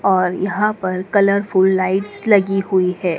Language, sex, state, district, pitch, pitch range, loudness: Hindi, female, Madhya Pradesh, Dhar, 195 Hz, 185-200 Hz, -17 LUFS